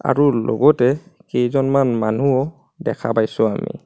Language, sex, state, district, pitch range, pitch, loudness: Assamese, male, Assam, Kamrup Metropolitan, 115-145 Hz, 135 Hz, -18 LUFS